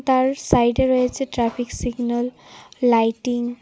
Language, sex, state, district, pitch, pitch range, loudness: Bengali, female, Tripura, West Tripura, 245 Hz, 240-255 Hz, -21 LUFS